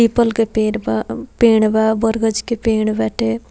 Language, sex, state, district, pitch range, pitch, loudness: Bhojpuri, female, Bihar, Muzaffarpur, 215-225 Hz, 220 Hz, -17 LUFS